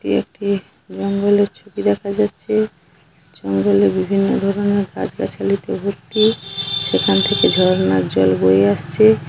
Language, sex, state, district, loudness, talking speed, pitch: Bengali, female, West Bengal, Paschim Medinipur, -17 LUFS, 125 wpm, 195 Hz